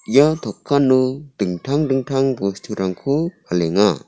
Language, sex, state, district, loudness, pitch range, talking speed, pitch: Garo, male, Meghalaya, South Garo Hills, -19 LUFS, 100-140 Hz, 90 wpm, 130 Hz